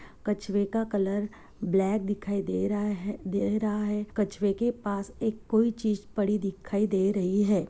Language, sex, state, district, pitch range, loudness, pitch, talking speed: Hindi, female, Chhattisgarh, Korba, 200-215 Hz, -29 LUFS, 205 Hz, 170 wpm